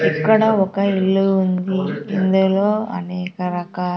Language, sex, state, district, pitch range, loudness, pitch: Telugu, female, Andhra Pradesh, Sri Satya Sai, 180-200 Hz, -18 LUFS, 190 Hz